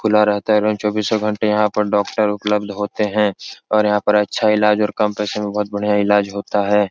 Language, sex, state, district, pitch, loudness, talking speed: Hindi, male, Uttar Pradesh, Etah, 105 Hz, -18 LUFS, 225 wpm